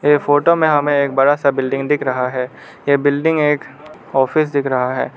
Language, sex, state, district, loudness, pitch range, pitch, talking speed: Hindi, male, Arunachal Pradesh, Lower Dibang Valley, -16 LUFS, 135-150 Hz, 140 Hz, 210 wpm